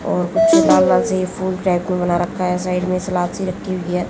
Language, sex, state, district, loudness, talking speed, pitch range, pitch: Hindi, female, Haryana, Jhajjar, -17 LUFS, 265 wpm, 180-185 Hz, 185 Hz